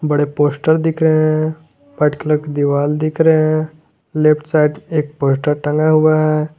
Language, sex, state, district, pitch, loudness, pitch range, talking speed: Hindi, male, Jharkhand, Garhwa, 155 Hz, -15 LUFS, 150-155 Hz, 175 wpm